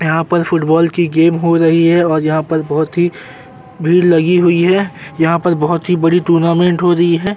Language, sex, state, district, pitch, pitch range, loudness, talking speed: Hindi, male, Uttar Pradesh, Jyotiba Phule Nagar, 170 Hz, 160-175 Hz, -13 LUFS, 210 wpm